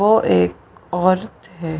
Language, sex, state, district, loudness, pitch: Hindi, female, Bihar, Gaya, -18 LUFS, 165 Hz